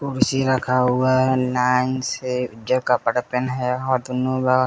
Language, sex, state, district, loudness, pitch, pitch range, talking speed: Hindi, male, Bihar, West Champaran, -21 LUFS, 130 Hz, 125-130 Hz, 140 wpm